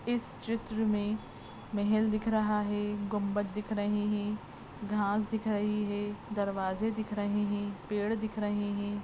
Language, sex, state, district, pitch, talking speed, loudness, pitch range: Hindi, female, Chhattisgarh, Sarguja, 210 Hz, 155 wpm, -33 LUFS, 205-215 Hz